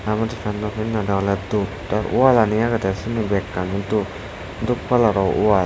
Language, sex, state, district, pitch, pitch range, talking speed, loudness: Chakma, male, Tripura, West Tripura, 105 Hz, 100-110 Hz, 150 wpm, -21 LUFS